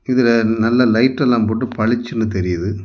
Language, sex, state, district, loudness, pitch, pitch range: Tamil, male, Tamil Nadu, Kanyakumari, -16 LUFS, 115 Hz, 110-120 Hz